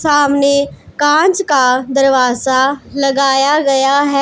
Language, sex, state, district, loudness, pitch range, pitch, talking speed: Hindi, female, Punjab, Pathankot, -12 LUFS, 270-290 Hz, 275 Hz, 100 wpm